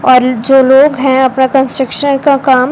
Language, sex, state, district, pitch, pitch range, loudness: Hindi, male, Rajasthan, Bikaner, 265 Hz, 260-275 Hz, -9 LUFS